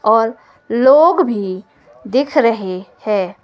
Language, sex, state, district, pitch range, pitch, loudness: Hindi, female, Himachal Pradesh, Shimla, 195-265 Hz, 225 Hz, -15 LUFS